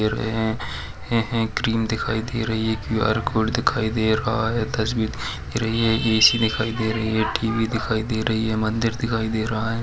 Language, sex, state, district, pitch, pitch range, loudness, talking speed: Hindi, male, Bihar, Madhepura, 110 Hz, 110-115 Hz, -22 LUFS, 190 wpm